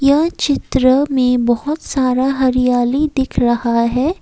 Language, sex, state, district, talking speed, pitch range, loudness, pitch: Hindi, female, Assam, Kamrup Metropolitan, 130 wpm, 245-280 Hz, -15 LUFS, 260 Hz